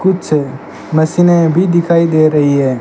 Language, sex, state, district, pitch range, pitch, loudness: Hindi, male, Rajasthan, Bikaner, 145-170 Hz, 160 Hz, -12 LUFS